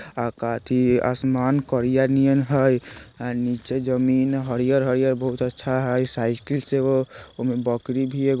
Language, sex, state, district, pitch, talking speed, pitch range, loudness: Bajjika, male, Bihar, Vaishali, 130 Hz, 145 wpm, 125-135 Hz, -22 LUFS